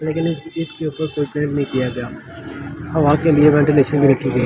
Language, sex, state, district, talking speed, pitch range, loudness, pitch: Hindi, male, Delhi, New Delhi, 215 wpm, 140-155 Hz, -17 LUFS, 150 Hz